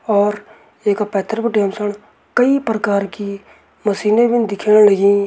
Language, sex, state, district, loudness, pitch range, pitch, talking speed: Garhwali, male, Uttarakhand, Tehri Garhwal, -16 LUFS, 200-220 Hz, 210 Hz, 160 wpm